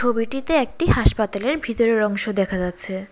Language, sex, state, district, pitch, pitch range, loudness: Bengali, female, Tripura, West Tripura, 215 Hz, 195-245 Hz, -21 LUFS